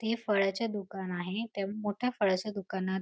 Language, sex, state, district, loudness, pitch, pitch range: Marathi, female, Maharashtra, Dhule, -33 LUFS, 200 Hz, 190-215 Hz